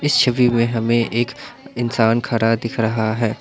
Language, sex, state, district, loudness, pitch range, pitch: Hindi, male, Assam, Kamrup Metropolitan, -18 LUFS, 115-120 Hz, 115 Hz